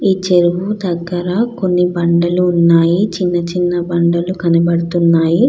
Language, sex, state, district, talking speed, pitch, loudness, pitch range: Telugu, female, Andhra Pradesh, Krishna, 110 wpm, 175 Hz, -14 LUFS, 170-180 Hz